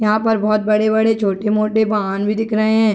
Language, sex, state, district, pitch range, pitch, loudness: Hindi, female, Bihar, Gopalganj, 210-220 Hz, 215 Hz, -17 LUFS